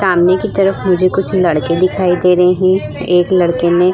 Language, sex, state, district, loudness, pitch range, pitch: Hindi, female, Bihar, Vaishali, -13 LUFS, 175-185 Hz, 180 Hz